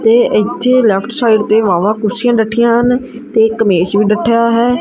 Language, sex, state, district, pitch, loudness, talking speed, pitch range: Punjabi, male, Punjab, Kapurthala, 230 Hz, -12 LUFS, 185 wpm, 215-245 Hz